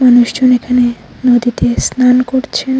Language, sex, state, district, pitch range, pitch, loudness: Bengali, female, Tripura, Unakoti, 240-255 Hz, 250 Hz, -12 LUFS